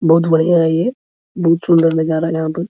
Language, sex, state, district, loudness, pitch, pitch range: Hindi, male, Bihar, Araria, -15 LUFS, 165 Hz, 160-170 Hz